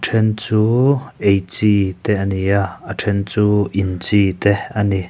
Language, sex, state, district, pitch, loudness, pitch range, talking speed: Mizo, male, Mizoram, Aizawl, 100 Hz, -17 LUFS, 95-105 Hz, 190 wpm